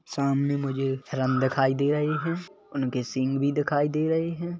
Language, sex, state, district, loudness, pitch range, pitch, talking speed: Hindi, male, Chhattisgarh, Kabirdham, -26 LUFS, 135-155 Hz, 140 Hz, 180 wpm